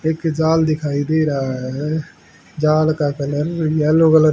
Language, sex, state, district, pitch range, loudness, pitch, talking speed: Hindi, male, Haryana, Charkhi Dadri, 145-160 Hz, -18 LUFS, 155 Hz, 165 wpm